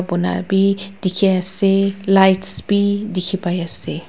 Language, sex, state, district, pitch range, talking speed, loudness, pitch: Nagamese, female, Nagaland, Dimapur, 185-195 Hz, 115 wpm, -17 LUFS, 195 Hz